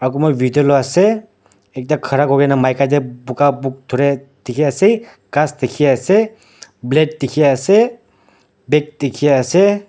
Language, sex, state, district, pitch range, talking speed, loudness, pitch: Nagamese, male, Nagaland, Dimapur, 130-155 Hz, 140 wpm, -15 LUFS, 140 Hz